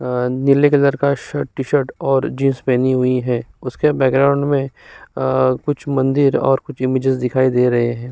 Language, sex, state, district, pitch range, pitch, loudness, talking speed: Hindi, male, Uttar Pradesh, Jyotiba Phule Nagar, 130-140 Hz, 135 Hz, -17 LUFS, 175 wpm